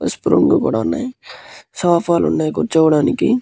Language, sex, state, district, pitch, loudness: Telugu, male, Andhra Pradesh, Guntur, 165 Hz, -16 LUFS